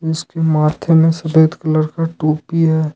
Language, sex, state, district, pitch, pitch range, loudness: Hindi, male, Jharkhand, Ranchi, 160 Hz, 155-165 Hz, -15 LUFS